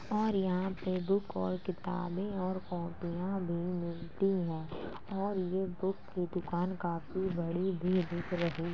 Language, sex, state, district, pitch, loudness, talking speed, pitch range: Hindi, female, Uttar Pradesh, Jalaun, 180 Hz, -35 LUFS, 150 wpm, 170-190 Hz